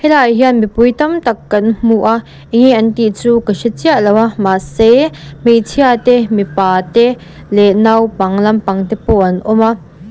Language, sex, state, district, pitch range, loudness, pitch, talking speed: Mizo, female, Mizoram, Aizawl, 205-235 Hz, -11 LUFS, 225 Hz, 185 wpm